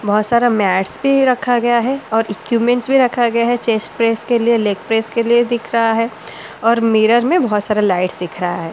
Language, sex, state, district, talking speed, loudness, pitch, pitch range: Hindi, female, Delhi, New Delhi, 225 wpm, -15 LUFS, 230 Hz, 215-240 Hz